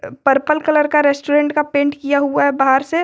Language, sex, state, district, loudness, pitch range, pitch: Hindi, female, Jharkhand, Garhwa, -15 LUFS, 280-300 Hz, 285 Hz